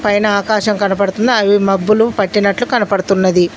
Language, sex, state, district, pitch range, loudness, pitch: Telugu, female, Telangana, Mahabubabad, 195-215 Hz, -13 LUFS, 205 Hz